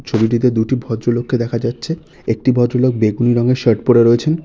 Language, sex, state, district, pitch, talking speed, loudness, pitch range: Bengali, male, West Bengal, North 24 Parganas, 120 Hz, 160 wpm, -16 LUFS, 115-130 Hz